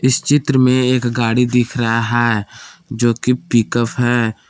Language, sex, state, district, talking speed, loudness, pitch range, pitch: Hindi, male, Jharkhand, Palamu, 175 wpm, -16 LUFS, 115-125 Hz, 120 Hz